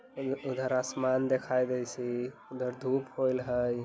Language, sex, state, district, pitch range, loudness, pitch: Bajjika, male, Bihar, Vaishali, 125-130 Hz, -32 LUFS, 130 Hz